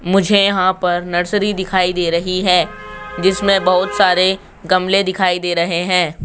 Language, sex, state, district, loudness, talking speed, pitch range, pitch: Hindi, male, Rajasthan, Jaipur, -15 LUFS, 155 wpm, 175-190 Hz, 185 Hz